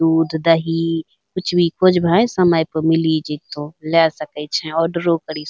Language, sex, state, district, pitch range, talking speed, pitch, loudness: Angika, female, Bihar, Bhagalpur, 155-170 Hz, 185 wpm, 165 Hz, -18 LUFS